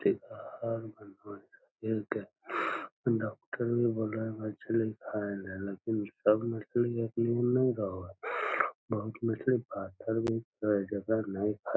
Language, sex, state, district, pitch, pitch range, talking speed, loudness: Magahi, male, Bihar, Lakhisarai, 110 Hz, 105-115 Hz, 135 wpm, -33 LUFS